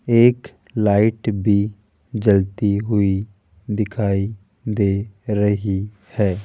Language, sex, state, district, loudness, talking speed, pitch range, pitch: Hindi, male, Rajasthan, Jaipur, -20 LUFS, 85 wpm, 100-110 Hz, 105 Hz